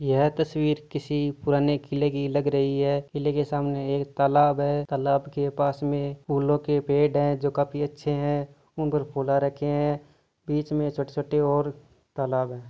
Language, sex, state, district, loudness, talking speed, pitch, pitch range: Marwari, male, Rajasthan, Nagaur, -25 LUFS, 175 wpm, 145 Hz, 140-145 Hz